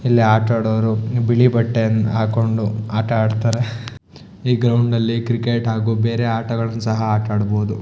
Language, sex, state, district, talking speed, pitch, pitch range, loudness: Kannada, male, Karnataka, Shimoga, 140 wpm, 115 Hz, 110-115 Hz, -18 LUFS